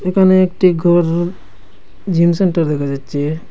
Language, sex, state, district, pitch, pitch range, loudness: Bengali, male, Assam, Hailakandi, 170 Hz, 145-185 Hz, -15 LUFS